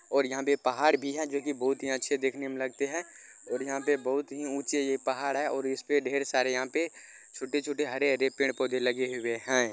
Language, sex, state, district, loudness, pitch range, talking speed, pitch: Hindi, male, Bihar, Araria, -30 LUFS, 130-145 Hz, 215 wpm, 135 Hz